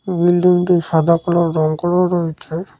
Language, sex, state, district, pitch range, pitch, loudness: Bengali, male, West Bengal, Cooch Behar, 165-175 Hz, 170 Hz, -16 LUFS